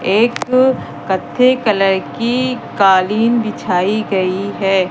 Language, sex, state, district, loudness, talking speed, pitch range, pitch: Hindi, female, Madhya Pradesh, Katni, -15 LUFS, 100 wpm, 190-240 Hz, 210 Hz